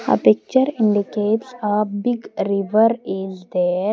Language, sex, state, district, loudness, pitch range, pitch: English, female, Maharashtra, Gondia, -19 LUFS, 190-225 Hz, 210 Hz